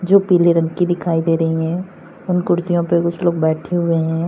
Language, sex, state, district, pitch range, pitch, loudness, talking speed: Hindi, female, Uttar Pradesh, Saharanpur, 165-175 Hz, 170 Hz, -17 LUFS, 225 wpm